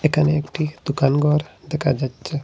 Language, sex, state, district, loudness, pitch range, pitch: Bengali, male, Assam, Hailakandi, -21 LUFS, 140-155 Hz, 150 Hz